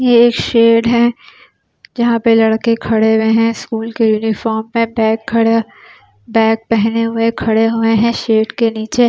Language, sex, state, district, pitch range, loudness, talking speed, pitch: Hindi, female, Delhi, New Delhi, 220-230 Hz, -14 LUFS, 170 wpm, 225 Hz